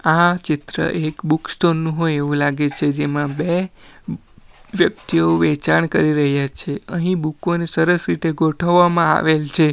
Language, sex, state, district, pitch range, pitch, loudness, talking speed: Gujarati, male, Gujarat, Valsad, 145-170 Hz, 155 Hz, -18 LUFS, 150 wpm